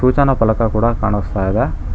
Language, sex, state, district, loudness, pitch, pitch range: Kannada, male, Karnataka, Bangalore, -16 LUFS, 110 Hz, 95-115 Hz